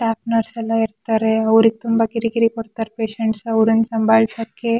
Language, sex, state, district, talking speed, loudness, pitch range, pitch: Kannada, female, Karnataka, Shimoga, 135 wpm, -18 LUFS, 225-230 Hz, 225 Hz